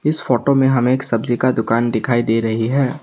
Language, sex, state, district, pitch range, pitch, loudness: Hindi, male, Assam, Sonitpur, 115-135 Hz, 120 Hz, -17 LUFS